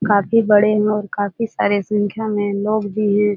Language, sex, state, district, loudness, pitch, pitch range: Hindi, female, Bihar, Jahanabad, -18 LUFS, 210 Hz, 205-215 Hz